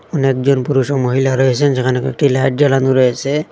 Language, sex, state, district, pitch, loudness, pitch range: Bengali, male, Assam, Hailakandi, 135 Hz, -14 LUFS, 130-140 Hz